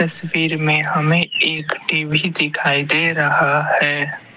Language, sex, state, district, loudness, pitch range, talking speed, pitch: Hindi, male, Assam, Kamrup Metropolitan, -16 LUFS, 155-165 Hz, 110 wpm, 155 Hz